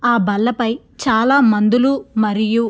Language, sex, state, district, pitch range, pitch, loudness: Telugu, female, Andhra Pradesh, Krishna, 215-245 Hz, 230 Hz, -16 LUFS